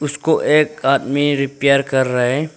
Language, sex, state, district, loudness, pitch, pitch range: Hindi, male, Arunachal Pradesh, Longding, -16 LUFS, 140 Hz, 135-150 Hz